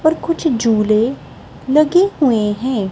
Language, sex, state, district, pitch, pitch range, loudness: Hindi, male, Punjab, Kapurthala, 260 Hz, 220-315 Hz, -15 LUFS